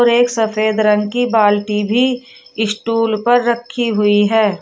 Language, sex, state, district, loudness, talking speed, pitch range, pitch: Hindi, female, Uttar Pradesh, Shamli, -15 LUFS, 155 wpm, 210-240 Hz, 225 Hz